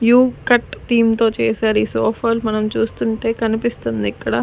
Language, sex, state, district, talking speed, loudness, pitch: Telugu, female, Andhra Pradesh, Sri Satya Sai, 135 wpm, -18 LUFS, 225 Hz